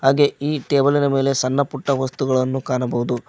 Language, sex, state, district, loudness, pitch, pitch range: Kannada, male, Karnataka, Koppal, -19 LUFS, 135 Hz, 130-140 Hz